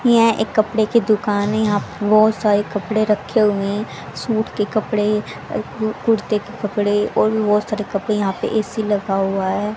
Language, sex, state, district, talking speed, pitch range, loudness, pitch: Hindi, female, Haryana, Rohtak, 190 wpm, 205-220 Hz, -19 LUFS, 210 Hz